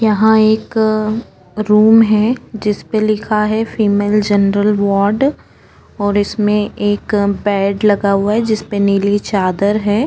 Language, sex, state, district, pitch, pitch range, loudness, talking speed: Hindi, female, Uttarakhand, Tehri Garhwal, 210 Hz, 205-215 Hz, -14 LUFS, 125 wpm